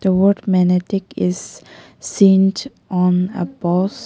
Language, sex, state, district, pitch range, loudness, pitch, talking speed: English, female, Nagaland, Kohima, 180-195 Hz, -17 LUFS, 185 Hz, 120 wpm